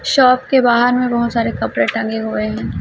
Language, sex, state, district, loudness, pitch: Hindi, female, Chhattisgarh, Raipur, -15 LUFS, 230 Hz